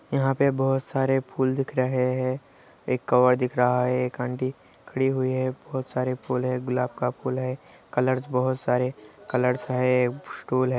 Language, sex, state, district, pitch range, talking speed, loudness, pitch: Hindi, male, Andhra Pradesh, Anantapur, 125-130 Hz, 180 wpm, -25 LUFS, 130 Hz